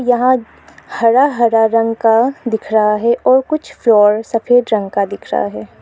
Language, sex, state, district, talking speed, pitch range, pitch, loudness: Hindi, female, Arunachal Pradesh, Lower Dibang Valley, 175 wpm, 210-245 Hz, 225 Hz, -14 LUFS